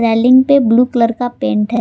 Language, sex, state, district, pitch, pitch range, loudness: Hindi, female, Jharkhand, Palamu, 240 Hz, 230-250 Hz, -12 LUFS